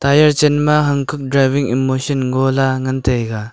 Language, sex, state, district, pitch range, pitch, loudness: Wancho, male, Arunachal Pradesh, Longding, 130-145 Hz, 135 Hz, -15 LUFS